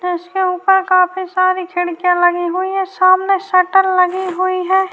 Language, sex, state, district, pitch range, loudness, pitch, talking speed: Urdu, female, Bihar, Saharsa, 360-375 Hz, -15 LUFS, 370 Hz, 170 wpm